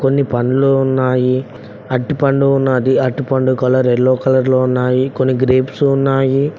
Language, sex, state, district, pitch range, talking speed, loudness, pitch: Telugu, male, Telangana, Mahabubabad, 130-135 Hz, 125 wpm, -14 LUFS, 130 Hz